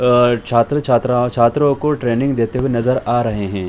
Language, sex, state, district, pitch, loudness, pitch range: Hindi, male, Bihar, Jamui, 120 Hz, -16 LUFS, 115-130 Hz